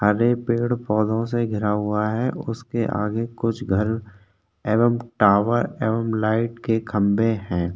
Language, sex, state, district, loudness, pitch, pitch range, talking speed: Hindi, male, Maharashtra, Chandrapur, -22 LUFS, 110 Hz, 105-115 Hz, 140 wpm